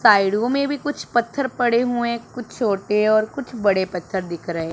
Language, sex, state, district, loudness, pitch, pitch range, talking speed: Hindi, male, Punjab, Pathankot, -21 LUFS, 230 Hz, 195-245 Hz, 190 wpm